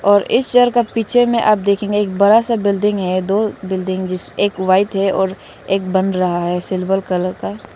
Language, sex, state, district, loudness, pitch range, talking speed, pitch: Hindi, female, Arunachal Pradesh, Lower Dibang Valley, -16 LUFS, 185-210 Hz, 215 wpm, 195 Hz